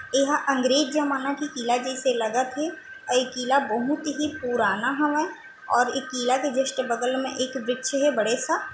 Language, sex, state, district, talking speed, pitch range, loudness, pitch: Chhattisgarhi, female, Chhattisgarh, Bilaspur, 185 wpm, 255-300 Hz, -25 LUFS, 265 Hz